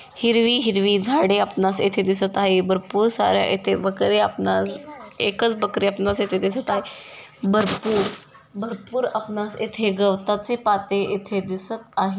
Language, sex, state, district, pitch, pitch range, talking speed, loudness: Marathi, female, Maharashtra, Dhule, 200 Hz, 190-220 Hz, 135 wpm, -21 LUFS